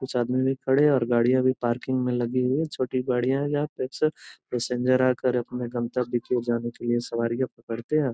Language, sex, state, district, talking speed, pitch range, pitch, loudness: Hindi, male, Bihar, Gopalganj, 200 wpm, 120-130 Hz, 125 Hz, -25 LUFS